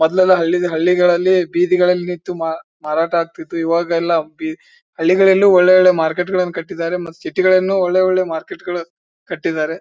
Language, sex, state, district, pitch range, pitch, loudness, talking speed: Kannada, male, Karnataka, Bijapur, 165-185 Hz, 180 Hz, -16 LUFS, 130 wpm